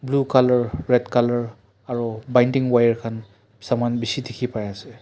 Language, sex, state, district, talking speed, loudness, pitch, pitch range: Nagamese, male, Nagaland, Dimapur, 155 wpm, -21 LUFS, 120 Hz, 110-125 Hz